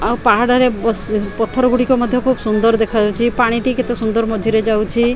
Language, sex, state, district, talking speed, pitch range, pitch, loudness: Odia, female, Odisha, Khordha, 220 wpm, 220-250 Hz, 230 Hz, -15 LUFS